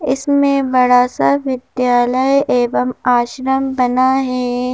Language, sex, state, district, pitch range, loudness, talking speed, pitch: Hindi, female, Madhya Pradesh, Bhopal, 245-265 Hz, -15 LUFS, 100 wpm, 255 Hz